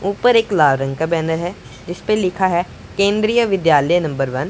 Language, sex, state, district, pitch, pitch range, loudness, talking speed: Hindi, male, Punjab, Pathankot, 175 Hz, 155-200 Hz, -17 LUFS, 200 wpm